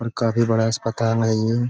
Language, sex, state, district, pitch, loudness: Hindi, male, Uttar Pradesh, Budaun, 115 Hz, -21 LUFS